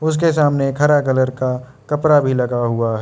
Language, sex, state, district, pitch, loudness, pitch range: Hindi, male, Arunachal Pradesh, Lower Dibang Valley, 130 Hz, -17 LUFS, 125-150 Hz